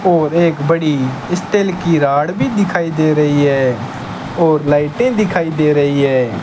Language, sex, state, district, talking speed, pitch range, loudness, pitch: Hindi, male, Rajasthan, Bikaner, 160 wpm, 140-175 Hz, -14 LUFS, 155 Hz